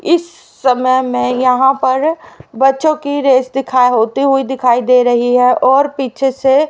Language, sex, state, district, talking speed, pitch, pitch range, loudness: Hindi, female, Haryana, Rohtak, 160 wpm, 265 Hz, 250-275 Hz, -13 LUFS